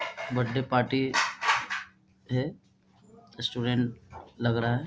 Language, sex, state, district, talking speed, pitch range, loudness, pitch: Hindi, male, Bihar, Bhagalpur, 85 wpm, 120-130 Hz, -29 LUFS, 125 Hz